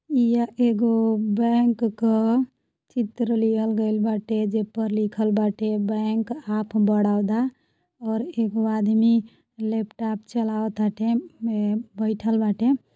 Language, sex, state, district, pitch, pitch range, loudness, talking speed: Bhojpuri, female, Uttar Pradesh, Deoria, 220 Hz, 215-230 Hz, -23 LUFS, 105 wpm